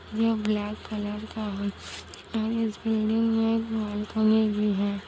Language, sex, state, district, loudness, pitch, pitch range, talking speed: Hindi, female, Bihar, Kishanganj, -27 LUFS, 215 Hz, 210-225 Hz, 155 wpm